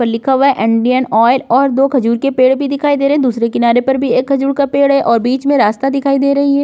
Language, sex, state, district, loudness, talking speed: Hindi, female, Uttar Pradesh, Budaun, -12 LUFS, 305 wpm